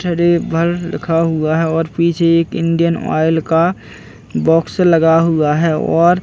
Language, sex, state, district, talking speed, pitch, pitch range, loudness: Hindi, male, Chhattisgarh, Bastar, 145 wpm, 165 Hz, 160-170 Hz, -14 LUFS